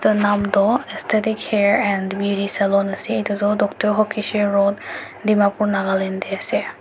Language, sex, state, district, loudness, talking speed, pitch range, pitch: Nagamese, male, Nagaland, Dimapur, -19 LUFS, 160 wpm, 200-210 Hz, 205 Hz